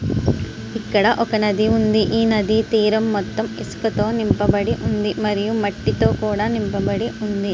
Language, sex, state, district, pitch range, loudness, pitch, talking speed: Telugu, female, Andhra Pradesh, Srikakulam, 200-220 Hz, -19 LUFS, 210 Hz, 145 wpm